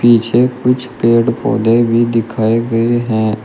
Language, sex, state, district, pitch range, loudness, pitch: Hindi, male, Uttar Pradesh, Shamli, 115-120 Hz, -13 LUFS, 115 Hz